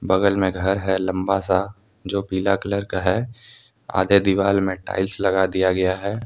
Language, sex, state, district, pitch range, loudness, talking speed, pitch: Hindi, male, Jharkhand, Deoghar, 95-100 Hz, -21 LUFS, 180 wpm, 95 Hz